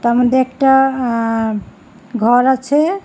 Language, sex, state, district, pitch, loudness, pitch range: Bengali, female, Assam, Hailakandi, 250 Hz, -14 LUFS, 230-265 Hz